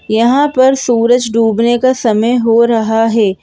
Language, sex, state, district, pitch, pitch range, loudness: Hindi, female, Madhya Pradesh, Bhopal, 235 Hz, 225-245 Hz, -11 LUFS